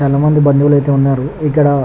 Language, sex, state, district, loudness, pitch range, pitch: Telugu, male, Telangana, Nalgonda, -12 LUFS, 140-150 Hz, 145 Hz